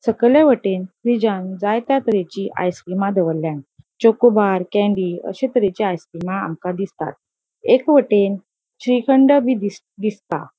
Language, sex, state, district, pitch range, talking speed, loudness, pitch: Konkani, female, Goa, North and South Goa, 185-240 Hz, 130 wpm, -18 LUFS, 205 Hz